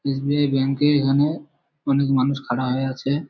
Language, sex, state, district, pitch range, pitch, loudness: Bengali, male, West Bengal, Malda, 135-145 Hz, 140 Hz, -21 LUFS